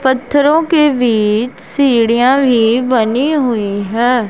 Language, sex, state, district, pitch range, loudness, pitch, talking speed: Hindi, female, Punjab, Pathankot, 225-275 Hz, -13 LUFS, 245 Hz, 110 wpm